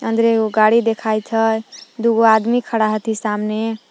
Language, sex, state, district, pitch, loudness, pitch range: Magahi, female, Jharkhand, Palamu, 225 Hz, -17 LUFS, 220-230 Hz